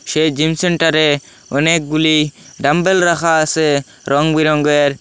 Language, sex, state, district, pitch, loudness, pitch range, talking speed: Bengali, male, Assam, Hailakandi, 155 Hz, -14 LUFS, 145-165 Hz, 95 wpm